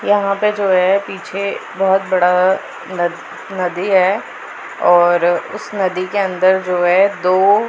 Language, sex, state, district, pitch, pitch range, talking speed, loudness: Hindi, female, Punjab, Pathankot, 190 Hz, 180-200 Hz, 140 wpm, -15 LUFS